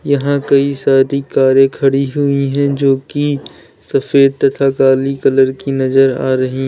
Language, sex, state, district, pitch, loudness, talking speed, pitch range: Hindi, male, Uttar Pradesh, Lalitpur, 135 Hz, -13 LUFS, 155 wpm, 135-140 Hz